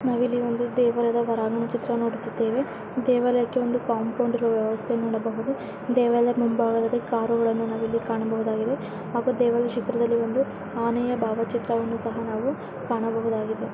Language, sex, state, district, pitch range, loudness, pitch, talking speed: Kannada, female, Karnataka, Dharwad, 225-240 Hz, -25 LUFS, 235 Hz, 120 wpm